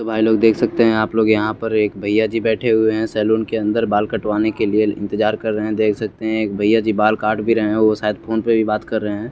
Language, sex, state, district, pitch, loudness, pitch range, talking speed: Hindi, male, Chandigarh, Chandigarh, 110 Hz, -18 LUFS, 105-110 Hz, 295 wpm